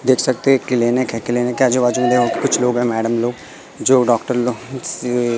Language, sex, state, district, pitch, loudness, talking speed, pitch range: Hindi, male, Madhya Pradesh, Katni, 125 Hz, -17 LUFS, 235 wpm, 120-130 Hz